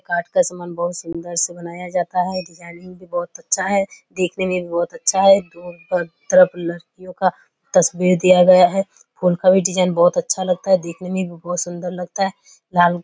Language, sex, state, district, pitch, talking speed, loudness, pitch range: Hindi, female, Bihar, Kishanganj, 180 Hz, 200 wpm, -18 LUFS, 175-185 Hz